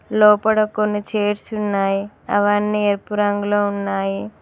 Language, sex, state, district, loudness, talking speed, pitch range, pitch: Telugu, female, Telangana, Mahabubabad, -19 LUFS, 110 wpm, 200-210 Hz, 205 Hz